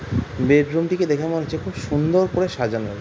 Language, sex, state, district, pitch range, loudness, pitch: Bengali, male, West Bengal, Jhargram, 120-165 Hz, -21 LUFS, 145 Hz